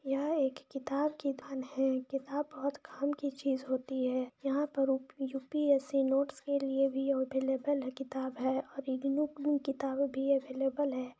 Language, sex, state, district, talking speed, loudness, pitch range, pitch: Hindi, female, Jharkhand, Jamtara, 155 wpm, -34 LUFS, 265-280 Hz, 270 Hz